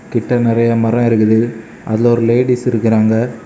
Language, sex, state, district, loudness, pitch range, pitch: Tamil, male, Tamil Nadu, Kanyakumari, -14 LUFS, 115-120 Hz, 115 Hz